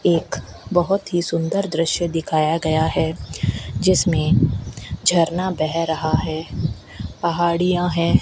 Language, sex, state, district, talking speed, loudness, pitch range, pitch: Hindi, female, Rajasthan, Bikaner, 110 wpm, -20 LUFS, 160-175 Hz, 165 Hz